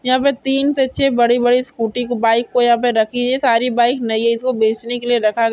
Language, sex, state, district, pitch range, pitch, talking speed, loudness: Hindi, female, Maharashtra, Solapur, 230-255 Hz, 245 Hz, 260 wpm, -16 LUFS